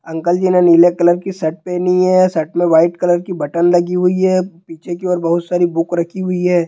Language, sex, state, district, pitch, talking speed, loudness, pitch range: Hindi, male, Bihar, Jahanabad, 175 Hz, 240 wpm, -14 LUFS, 170-180 Hz